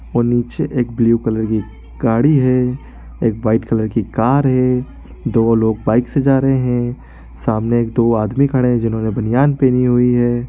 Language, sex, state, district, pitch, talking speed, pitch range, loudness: Hindi, male, Bihar, East Champaran, 120 Hz, 175 wpm, 110-125 Hz, -16 LUFS